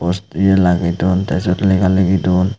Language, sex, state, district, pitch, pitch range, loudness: Chakma, male, Tripura, Unakoti, 95 Hz, 90-95 Hz, -15 LUFS